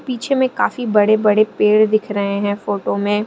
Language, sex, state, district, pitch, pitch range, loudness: Hindi, female, Arunachal Pradesh, Lower Dibang Valley, 210 Hz, 205-225 Hz, -16 LUFS